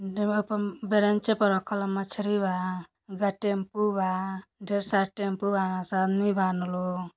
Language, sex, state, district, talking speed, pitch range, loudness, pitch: Bhojpuri, female, Uttar Pradesh, Gorakhpur, 150 wpm, 190-205 Hz, -28 LUFS, 195 Hz